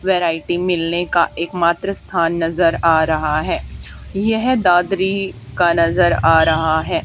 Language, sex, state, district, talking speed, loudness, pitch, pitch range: Hindi, female, Haryana, Charkhi Dadri, 145 wpm, -17 LUFS, 170 Hz, 165-185 Hz